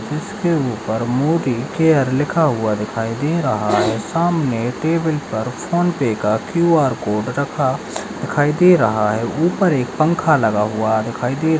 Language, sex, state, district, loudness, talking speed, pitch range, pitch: Hindi, male, Rajasthan, Churu, -18 LUFS, 160 wpm, 115-165 Hz, 140 Hz